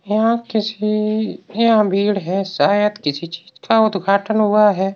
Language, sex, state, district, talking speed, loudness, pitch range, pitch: Hindi, male, Uttar Pradesh, Varanasi, 145 wpm, -17 LUFS, 195-215 Hz, 210 Hz